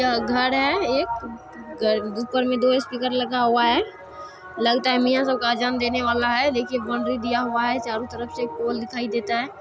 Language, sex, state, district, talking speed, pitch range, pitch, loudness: Maithili, female, Bihar, Supaul, 195 wpm, 235-255 Hz, 240 Hz, -22 LUFS